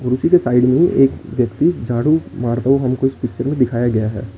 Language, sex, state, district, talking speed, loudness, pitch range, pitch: Hindi, male, Chandigarh, Chandigarh, 220 wpm, -16 LUFS, 120-135 Hz, 125 Hz